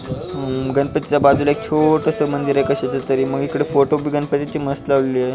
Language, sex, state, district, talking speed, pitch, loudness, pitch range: Marathi, male, Maharashtra, Pune, 170 wpm, 140 Hz, -18 LUFS, 135-145 Hz